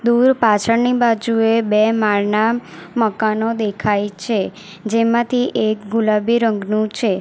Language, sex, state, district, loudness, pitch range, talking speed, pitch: Gujarati, female, Gujarat, Valsad, -17 LUFS, 210-230 Hz, 110 wpm, 220 Hz